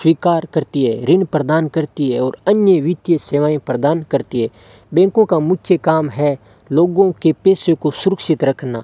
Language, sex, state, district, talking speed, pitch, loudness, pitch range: Hindi, male, Rajasthan, Bikaner, 175 wpm, 160 Hz, -16 LUFS, 140-175 Hz